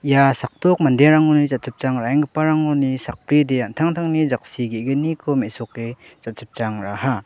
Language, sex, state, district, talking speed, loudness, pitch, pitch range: Garo, male, Meghalaya, West Garo Hills, 100 wpm, -19 LUFS, 135 Hz, 120-150 Hz